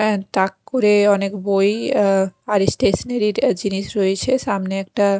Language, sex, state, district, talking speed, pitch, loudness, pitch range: Bengali, female, Chhattisgarh, Raipur, 140 wpm, 200 Hz, -18 LUFS, 195-210 Hz